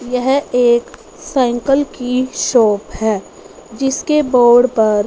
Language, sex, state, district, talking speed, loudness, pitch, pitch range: Hindi, female, Punjab, Fazilka, 105 wpm, -15 LUFS, 245 Hz, 230-265 Hz